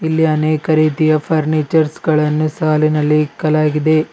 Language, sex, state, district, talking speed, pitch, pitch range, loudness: Kannada, male, Karnataka, Bidar, 100 wpm, 155 Hz, 150-155 Hz, -15 LUFS